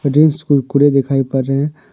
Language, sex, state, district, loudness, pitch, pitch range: Hindi, male, Jharkhand, Deoghar, -15 LUFS, 140 Hz, 135-150 Hz